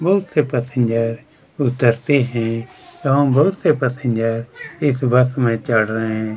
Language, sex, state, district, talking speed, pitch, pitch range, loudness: Hindi, male, Chhattisgarh, Kabirdham, 140 wpm, 125 Hz, 115-145 Hz, -18 LUFS